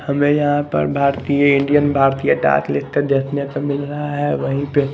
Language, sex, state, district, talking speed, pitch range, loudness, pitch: Hindi, male, Chandigarh, Chandigarh, 205 wpm, 135-145 Hz, -17 LUFS, 140 Hz